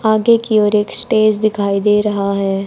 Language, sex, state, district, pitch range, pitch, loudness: Hindi, female, Haryana, Jhajjar, 200-215 Hz, 210 Hz, -14 LUFS